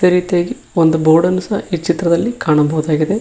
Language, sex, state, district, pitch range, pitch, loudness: Kannada, male, Karnataka, Koppal, 160-180 Hz, 170 Hz, -15 LUFS